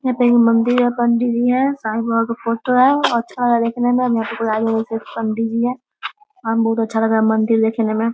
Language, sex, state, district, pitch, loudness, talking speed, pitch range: Hindi, female, Bihar, Muzaffarpur, 230 Hz, -17 LUFS, 265 wpm, 225-245 Hz